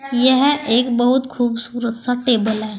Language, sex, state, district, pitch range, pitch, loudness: Hindi, female, Uttar Pradesh, Saharanpur, 230-255 Hz, 245 Hz, -17 LUFS